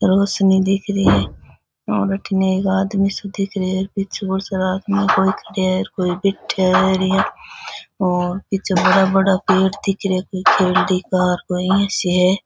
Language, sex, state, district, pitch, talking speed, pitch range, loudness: Rajasthani, female, Rajasthan, Nagaur, 190 Hz, 180 wpm, 185-195 Hz, -18 LUFS